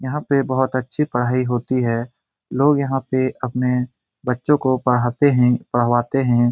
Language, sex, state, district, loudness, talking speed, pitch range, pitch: Hindi, male, Bihar, Lakhisarai, -19 LUFS, 155 wpm, 120-135 Hz, 125 Hz